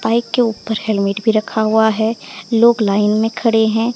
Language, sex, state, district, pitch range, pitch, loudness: Hindi, female, Odisha, Sambalpur, 215-230 Hz, 220 Hz, -16 LUFS